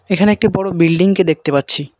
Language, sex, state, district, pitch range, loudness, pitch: Bengali, male, West Bengal, Alipurduar, 155-195 Hz, -14 LUFS, 180 Hz